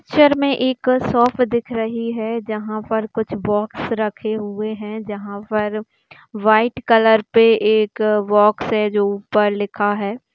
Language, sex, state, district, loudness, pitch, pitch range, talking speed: Hindi, female, Bihar, East Champaran, -18 LUFS, 215 Hz, 210-230 Hz, 300 wpm